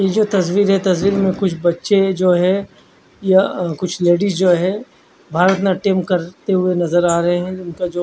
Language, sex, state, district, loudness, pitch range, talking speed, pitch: Hindi, male, Odisha, Khordha, -16 LUFS, 175-195 Hz, 180 wpm, 185 Hz